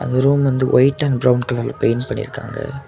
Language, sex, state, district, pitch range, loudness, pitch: Tamil, male, Tamil Nadu, Kanyakumari, 125-140 Hz, -18 LUFS, 130 Hz